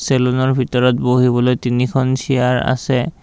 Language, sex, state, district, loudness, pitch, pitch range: Assamese, male, Assam, Kamrup Metropolitan, -16 LUFS, 125 Hz, 125-130 Hz